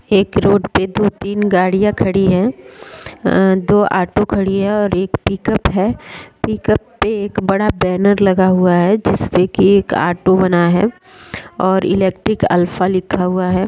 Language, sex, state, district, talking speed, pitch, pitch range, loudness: Hindi, female, Bihar, Sitamarhi, 160 wpm, 190 Hz, 185-205 Hz, -15 LUFS